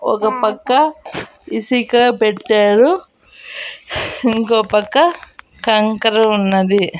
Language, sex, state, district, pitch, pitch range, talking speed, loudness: Telugu, female, Andhra Pradesh, Annamaya, 220 Hz, 210-245 Hz, 60 wpm, -15 LUFS